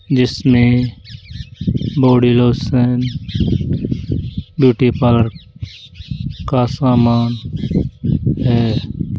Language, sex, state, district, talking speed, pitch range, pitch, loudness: Hindi, male, Rajasthan, Jaipur, 50 wpm, 120-130 Hz, 125 Hz, -16 LUFS